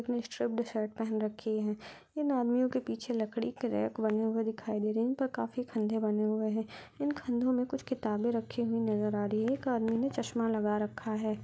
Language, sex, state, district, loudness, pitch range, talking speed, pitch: Hindi, female, Chhattisgarh, Kabirdham, -33 LUFS, 215-245 Hz, 225 wpm, 225 Hz